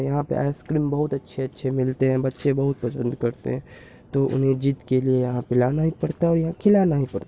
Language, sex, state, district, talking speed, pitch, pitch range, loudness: Hindi, male, Bihar, Purnia, 240 wpm, 135 Hz, 125-145 Hz, -23 LUFS